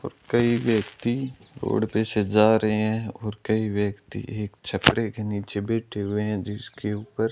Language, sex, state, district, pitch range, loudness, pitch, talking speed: Hindi, male, Rajasthan, Bikaner, 105-115 Hz, -25 LUFS, 110 Hz, 180 wpm